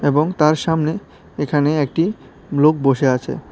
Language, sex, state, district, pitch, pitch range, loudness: Bengali, male, Tripura, West Tripura, 150 Hz, 145-160 Hz, -18 LUFS